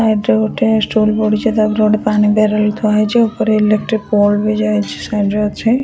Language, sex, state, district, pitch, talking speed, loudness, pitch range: Odia, female, Odisha, Khordha, 215 Hz, 195 wpm, -14 LUFS, 210-220 Hz